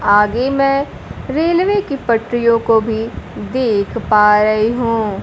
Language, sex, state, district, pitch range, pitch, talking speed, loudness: Hindi, female, Bihar, Kaimur, 215-275 Hz, 230 Hz, 115 wpm, -15 LUFS